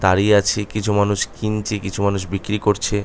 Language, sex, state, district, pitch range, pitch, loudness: Bengali, male, West Bengal, North 24 Parganas, 100-105 Hz, 105 Hz, -19 LUFS